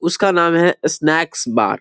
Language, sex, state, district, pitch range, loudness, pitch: Hindi, male, Bihar, Gopalganj, 160-175 Hz, -16 LUFS, 170 Hz